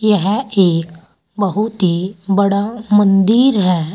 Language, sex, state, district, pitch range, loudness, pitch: Hindi, female, Uttar Pradesh, Saharanpur, 185-210 Hz, -15 LUFS, 200 Hz